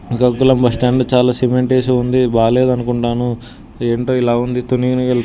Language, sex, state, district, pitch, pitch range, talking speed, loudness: Telugu, male, Andhra Pradesh, Srikakulam, 125 Hz, 120-125 Hz, 125 wpm, -15 LUFS